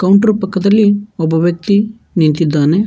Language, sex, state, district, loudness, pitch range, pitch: Kannada, male, Karnataka, Bangalore, -13 LUFS, 165-205 Hz, 195 Hz